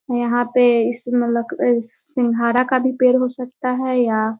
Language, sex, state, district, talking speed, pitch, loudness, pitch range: Hindi, female, Bihar, Muzaffarpur, 190 wpm, 245 Hz, -18 LUFS, 235-255 Hz